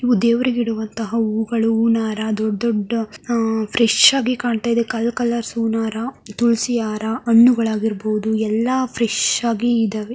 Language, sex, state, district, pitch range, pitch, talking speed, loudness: Kannada, male, Karnataka, Mysore, 220-235 Hz, 230 Hz, 130 wpm, -19 LUFS